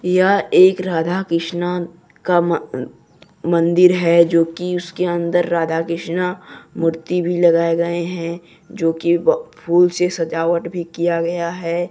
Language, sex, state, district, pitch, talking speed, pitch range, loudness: Hindi, male, Jharkhand, Deoghar, 170 Hz, 135 wpm, 170-180 Hz, -18 LUFS